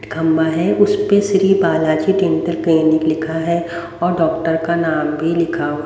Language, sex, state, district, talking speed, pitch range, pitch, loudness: Hindi, female, Haryana, Rohtak, 185 wpm, 160-170 Hz, 165 Hz, -16 LUFS